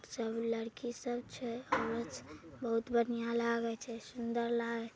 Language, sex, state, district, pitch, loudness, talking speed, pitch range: Maithili, female, Bihar, Samastipur, 235 Hz, -37 LUFS, 135 wpm, 230-235 Hz